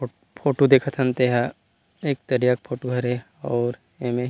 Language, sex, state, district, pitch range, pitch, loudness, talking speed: Chhattisgarhi, male, Chhattisgarh, Rajnandgaon, 120-130 Hz, 125 Hz, -23 LUFS, 165 wpm